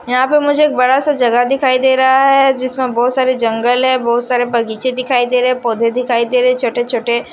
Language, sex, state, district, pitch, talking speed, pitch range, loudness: Hindi, male, Odisha, Nuapada, 250 Hz, 235 wpm, 240-260 Hz, -13 LUFS